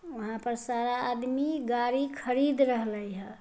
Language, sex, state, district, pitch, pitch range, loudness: Magahi, female, Bihar, Samastipur, 245 Hz, 235-270 Hz, -30 LUFS